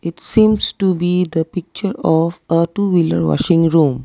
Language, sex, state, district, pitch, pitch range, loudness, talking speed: English, female, Assam, Kamrup Metropolitan, 170 Hz, 160-185 Hz, -16 LUFS, 165 wpm